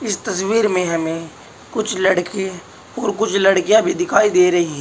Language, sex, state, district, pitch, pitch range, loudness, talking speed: Hindi, male, Uttar Pradesh, Saharanpur, 195 Hz, 180-215 Hz, -17 LUFS, 175 wpm